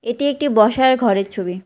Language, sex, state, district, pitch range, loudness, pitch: Bengali, female, West Bengal, Cooch Behar, 195-260 Hz, -16 LUFS, 230 Hz